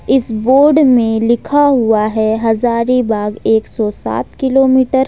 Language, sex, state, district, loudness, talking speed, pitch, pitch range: Hindi, female, Jharkhand, Ranchi, -13 LUFS, 130 wpm, 235 Hz, 220-265 Hz